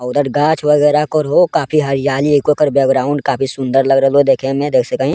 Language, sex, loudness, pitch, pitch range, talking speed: Angika, male, -14 LUFS, 145 Hz, 135-150 Hz, 245 wpm